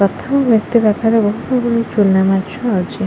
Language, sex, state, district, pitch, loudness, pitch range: Odia, female, Odisha, Khordha, 220 Hz, -15 LUFS, 200-235 Hz